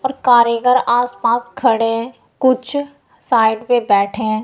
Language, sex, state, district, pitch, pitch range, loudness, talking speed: Hindi, female, Punjab, Kapurthala, 240 Hz, 225-255 Hz, -16 LUFS, 135 wpm